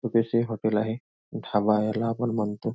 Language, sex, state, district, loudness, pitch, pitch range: Marathi, male, Maharashtra, Nagpur, -26 LUFS, 110 Hz, 105-115 Hz